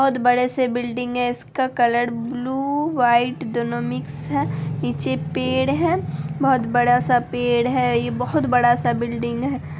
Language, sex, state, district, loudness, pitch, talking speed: Hindi, female, Bihar, Araria, -21 LUFS, 240 Hz, 145 wpm